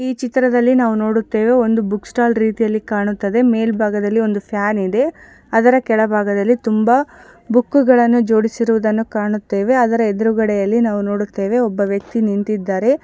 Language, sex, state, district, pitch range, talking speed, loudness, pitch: Kannada, female, Karnataka, Gulbarga, 210-240 Hz, 120 wpm, -16 LUFS, 225 Hz